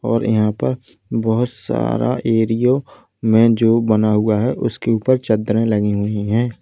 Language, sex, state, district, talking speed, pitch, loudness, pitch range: Hindi, male, Uttar Pradesh, Lalitpur, 155 wpm, 110 Hz, -17 LUFS, 105-115 Hz